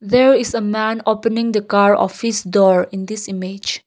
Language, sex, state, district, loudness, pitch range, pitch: English, female, Nagaland, Kohima, -16 LUFS, 195-230 Hz, 215 Hz